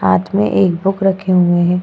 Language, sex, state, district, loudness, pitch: Hindi, female, Goa, North and South Goa, -14 LUFS, 175 Hz